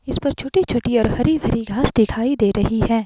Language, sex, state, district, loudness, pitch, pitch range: Hindi, female, Himachal Pradesh, Shimla, -19 LUFS, 240 Hz, 225-270 Hz